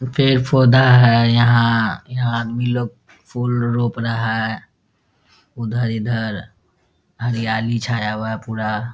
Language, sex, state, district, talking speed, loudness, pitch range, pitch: Hindi, male, Bihar, Muzaffarpur, 120 wpm, -18 LUFS, 110-120 Hz, 115 Hz